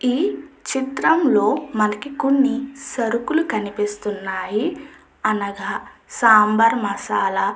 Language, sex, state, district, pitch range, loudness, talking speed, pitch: Telugu, female, Andhra Pradesh, Chittoor, 210-270 Hz, -20 LUFS, 85 wpm, 230 Hz